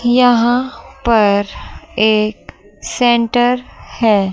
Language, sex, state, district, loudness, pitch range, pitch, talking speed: Hindi, female, Chandigarh, Chandigarh, -14 LUFS, 215-245 Hz, 235 Hz, 70 wpm